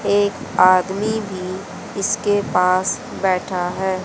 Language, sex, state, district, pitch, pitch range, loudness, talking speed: Hindi, female, Haryana, Jhajjar, 190 Hz, 185-205 Hz, -19 LUFS, 105 wpm